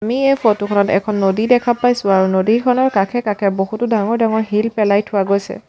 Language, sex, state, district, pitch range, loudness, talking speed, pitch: Assamese, female, Assam, Sonitpur, 200-240 Hz, -16 LUFS, 200 wpm, 215 Hz